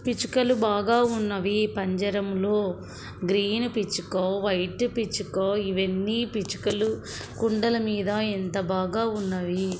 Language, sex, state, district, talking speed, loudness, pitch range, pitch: Telugu, female, Andhra Pradesh, Anantapur, 90 wpm, -26 LUFS, 190-220 Hz, 205 Hz